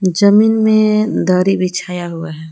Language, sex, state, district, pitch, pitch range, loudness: Hindi, female, Jharkhand, Palamu, 185 Hz, 180-215 Hz, -13 LUFS